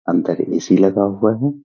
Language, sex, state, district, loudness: Hindi, male, Bihar, Saharsa, -17 LUFS